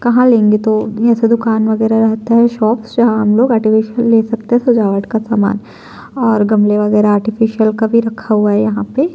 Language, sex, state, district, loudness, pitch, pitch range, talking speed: Hindi, female, Chhattisgarh, Sukma, -12 LUFS, 220 Hz, 215-230 Hz, 195 wpm